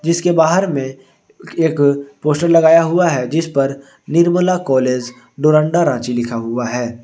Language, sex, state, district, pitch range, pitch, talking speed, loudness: Hindi, male, Jharkhand, Ranchi, 125-165 Hz, 145 Hz, 145 wpm, -15 LUFS